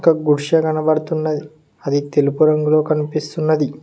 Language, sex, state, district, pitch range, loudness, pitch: Telugu, male, Telangana, Mahabubabad, 150-155 Hz, -17 LUFS, 155 Hz